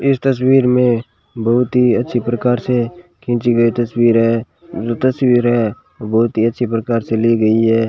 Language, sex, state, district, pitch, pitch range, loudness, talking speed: Hindi, male, Rajasthan, Bikaner, 120 Hz, 115-125 Hz, -15 LUFS, 180 wpm